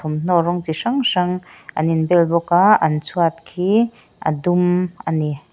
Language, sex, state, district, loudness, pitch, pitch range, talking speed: Mizo, female, Mizoram, Aizawl, -18 LUFS, 175 Hz, 160-180 Hz, 150 wpm